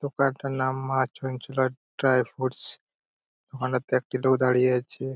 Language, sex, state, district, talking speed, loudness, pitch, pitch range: Bengali, male, West Bengal, Purulia, 130 wpm, -26 LUFS, 130 Hz, 130-135 Hz